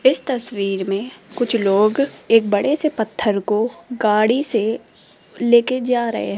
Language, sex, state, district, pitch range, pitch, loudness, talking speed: Hindi, female, Rajasthan, Jaipur, 210-250 Hz, 225 Hz, -19 LUFS, 150 wpm